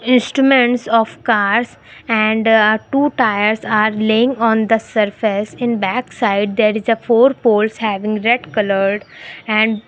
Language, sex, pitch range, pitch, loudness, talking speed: English, female, 215-240 Hz, 220 Hz, -15 LUFS, 150 wpm